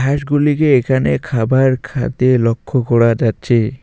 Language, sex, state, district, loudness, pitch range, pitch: Bengali, male, West Bengal, Alipurduar, -15 LUFS, 120-135 Hz, 130 Hz